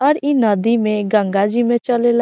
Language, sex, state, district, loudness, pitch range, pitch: Bhojpuri, female, Bihar, Saran, -16 LUFS, 210-240 Hz, 235 Hz